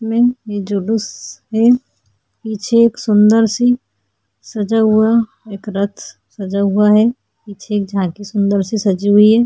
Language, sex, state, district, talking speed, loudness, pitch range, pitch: Hindi, female, Uttarakhand, Tehri Garhwal, 150 wpm, -15 LUFS, 200-225 Hz, 215 Hz